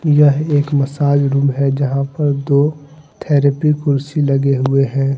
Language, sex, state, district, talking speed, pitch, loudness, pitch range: Hindi, male, Jharkhand, Deoghar, 150 wpm, 140 Hz, -15 LUFS, 140-145 Hz